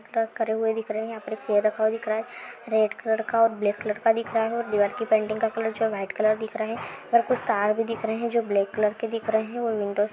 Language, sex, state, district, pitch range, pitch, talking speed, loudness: Hindi, female, Uttarakhand, Tehri Garhwal, 215-225 Hz, 220 Hz, 295 wpm, -25 LUFS